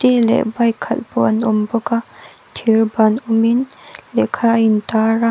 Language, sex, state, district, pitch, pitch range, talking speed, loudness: Mizo, female, Mizoram, Aizawl, 230 Hz, 220-235 Hz, 170 wpm, -16 LUFS